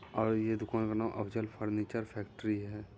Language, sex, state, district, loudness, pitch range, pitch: Hindi, male, Bihar, Muzaffarpur, -36 LUFS, 105-110 Hz, 110 Hz